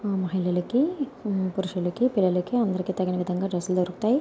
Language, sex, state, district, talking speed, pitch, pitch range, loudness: Telugu, female, Andhra Pradesh, Anantapur, 140 wpm, 185 Hz, 180-215 Hz, -26 LUFS